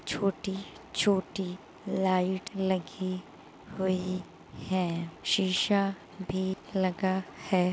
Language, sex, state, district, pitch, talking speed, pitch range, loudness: Hindi, female, Uttar Pradesh, Muzaffarnagar, 190 Hz, 80 wpm, 185-195 Hz, -31 LUFS